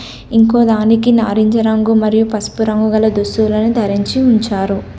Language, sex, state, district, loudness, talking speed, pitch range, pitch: Telugu, female, Telangana, Komaram Bheem, -13 LUFS, 130 wpm, 210-225 Hz, 220 Hz